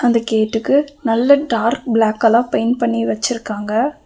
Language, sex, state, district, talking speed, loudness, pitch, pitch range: Tamil, female, Tamil Nadu, Nilgiris, 135 wpm, -16 LUFS, 230 Hz, 225-245 Hz